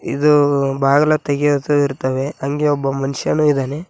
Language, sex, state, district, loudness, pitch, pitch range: Kannada, male, Karnataka, Koppal, -17 LUFS, 145 Hz, 135-145 Hz